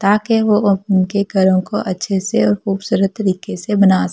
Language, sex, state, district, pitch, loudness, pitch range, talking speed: Hindi, female, Delhi, New Delhi, 195 Hz, -16 LUFS, 190-205 Hz, 205 wpm